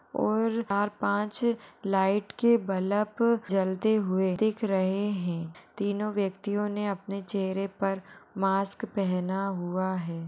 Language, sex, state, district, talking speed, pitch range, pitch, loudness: Hindi, female, Maharashtra, Sindhudurg, 110 wpm, 190-210 Hz, 195 Hz, -28 LUFS